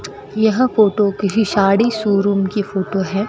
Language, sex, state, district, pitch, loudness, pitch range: Hindi, female, Rajasthan, Bikaner, 205 Hz, -16 LUFS, 195-215 Hz